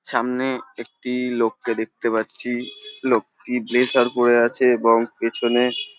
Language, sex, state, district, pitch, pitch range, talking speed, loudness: Bengali, male, West Bengal, North 24 Parganas, 120 Hz, 115-125 Hz, 120 wpm, -21 LUFS